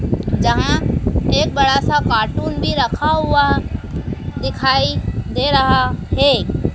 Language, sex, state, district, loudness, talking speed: Hindi, female, Madhya Pradesh, Dhar, -17 LUFS, 105 wpm